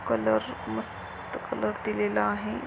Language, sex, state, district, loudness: Marathi, female, Maharashtra, Sindhudurg, -30 LUFS